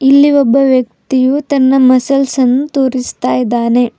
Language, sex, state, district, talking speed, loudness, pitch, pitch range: Kannada, female, Karnataka, Bidar, 120 wpm, -11 LUFS, 260 Hz, 255-275 Hz